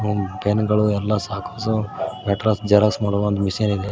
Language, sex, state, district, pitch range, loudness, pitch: Kannada, male, Karnataka, Koppal, 100-105 Hz, -21 LUFS, 105 Hz